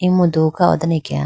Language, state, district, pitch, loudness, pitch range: Idu Mishmi, Arunachal Pradesh, Lower Dibang Valley, 165 Hz, -16 LUFS, 160-175 Hz